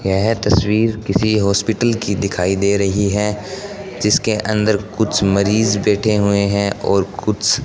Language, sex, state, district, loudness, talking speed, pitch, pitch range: Hindi, male, Rajasthan, Bikaner, -17 LUFS, 150 wpm, 105 Hz, 100-110 Hz